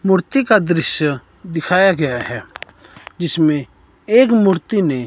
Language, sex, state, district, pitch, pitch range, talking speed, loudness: Hindi, male, Himachal Pradesh, Shimla, 170 Hz, 145-195 Hz, 120 wpm, -16 LUFS